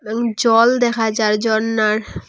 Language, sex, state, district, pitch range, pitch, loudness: Bengali, female, Assam, Hailakandi, 215-230 Hz, 225 Hz, -16 LUFS